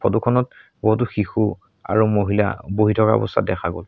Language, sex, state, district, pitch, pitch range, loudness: Assamese, male, Assam, Sonitpur, 105 Hz, 100-110 Hz, -20 LUFS